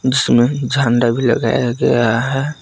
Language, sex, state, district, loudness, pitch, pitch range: Hindi, male, Jharkhand, Palamu, -15 LUFS, 120 Hz, 120-135 Hz